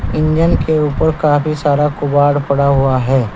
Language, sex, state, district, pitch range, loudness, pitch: Hindi, male, Uttar Pradesh, Saharanpur, 140-155 Hz, -14 LUFS, 145 Hz